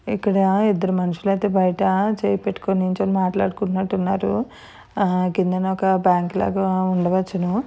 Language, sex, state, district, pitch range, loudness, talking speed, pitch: Telugu, female, Andhra Pradesh, Chittoor, 185-195 Hz, -20 LUFS, 125 wpm, 190 Hz